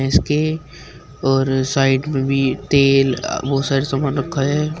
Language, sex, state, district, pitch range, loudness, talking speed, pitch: Hindi, male, Uttar Pradesh, Shamli, 135-145 Hz, -18 LUFS, 150 wpm, 135 Hz